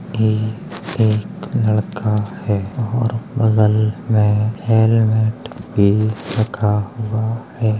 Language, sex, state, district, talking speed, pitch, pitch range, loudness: Hindi, male, Uttar Pradesh, Jalaun, 90 wpm, 110 Hz, 105-115 Hz, -18 LUFS